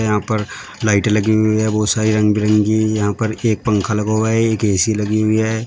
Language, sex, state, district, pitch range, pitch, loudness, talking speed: Hindi, male, Uttar Pradesh, Shamli, 105-110 Hz, 110 Hz, -16 LUFS, 230 wpm